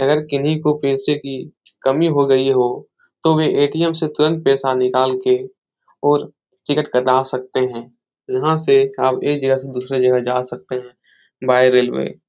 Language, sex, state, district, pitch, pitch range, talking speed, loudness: Hindi, male, Bihar, Jahanabad, 135 Hz, 130-155 Hz, 175 wpm, -17 LUFS